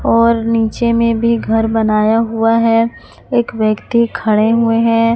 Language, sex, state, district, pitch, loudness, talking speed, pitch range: Hindi, female, Jharkhand, Palamu, 230 Hz, -14 LUFS, 150 wpm, 225-230 Hz